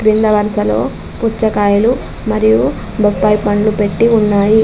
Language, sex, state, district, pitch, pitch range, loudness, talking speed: Telugu, female, Telangana, Adilabad, 215 Hz, 205-220 Hz, -13 LUFS, 105 wpm